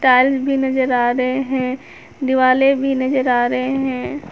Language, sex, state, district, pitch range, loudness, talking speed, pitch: Hindi, female, Jharkhand, Garhwa, 255-270 Hz, -17 LUFS, 165 wpm, 260 Hz